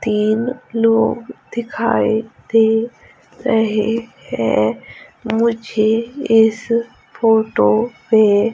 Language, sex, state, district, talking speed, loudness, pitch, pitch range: Hindi, female, Madhya Pradesh, Umaria, 70 wpm, -17 LUFS, 225 Hz, 220-230 Hz